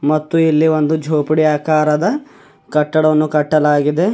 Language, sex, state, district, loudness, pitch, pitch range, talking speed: Kannada, male, Karnataka, Bidar, -15 LUFS, 155 Hz, 150-160 Hz, 100 wpm